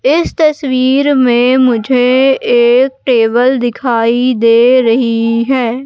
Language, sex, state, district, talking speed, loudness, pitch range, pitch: Hindi, female, Madhya Pradesh, Katni, 100 wpm, -10 LUFS, 235-265 Hz, 250 Hz